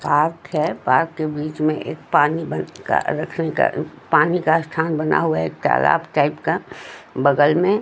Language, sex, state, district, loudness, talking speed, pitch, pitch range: Hindi, female, Bihar, Patna, -20 LUFS, 190 wpm, 155 Hz, 145-165 Hz